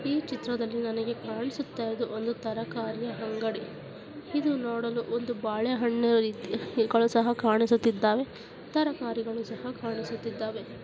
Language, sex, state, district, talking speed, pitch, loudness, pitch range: Kannada, female, Karnataka, Bellary, 100 wpm, 230 Hz, -29 LUFS, 225-240 Hz